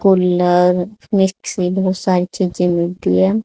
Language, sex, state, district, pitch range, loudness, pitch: Hindi, female, Haryana, Charkhi Dadri, 180-190 Hz, -16 LUFS, 180 Hz